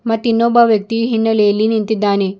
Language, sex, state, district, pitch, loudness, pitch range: Kannada, female, Karnataka, Bidar, 225 Hz, -14 LUFS, 210-230 Hz